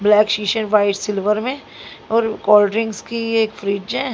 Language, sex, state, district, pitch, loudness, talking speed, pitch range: Hindi, female, Haryana, Jhajjar, 215 Hz, -18 LUFS, 190 wpm, 210-225 Hz